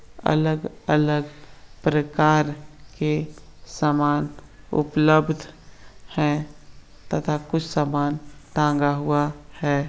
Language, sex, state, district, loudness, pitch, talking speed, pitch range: Hindi, male, Bihar, Saran, -23 LUFS, 150 Hz, 75 wpm, 145-155 Hz